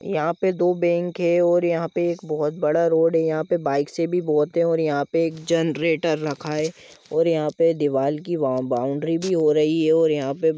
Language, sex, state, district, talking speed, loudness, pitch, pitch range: Hindi, male, Jharkhand, Jamtara, 210 wpm, -22 LUFS, 160 Hz, 150-170 Hz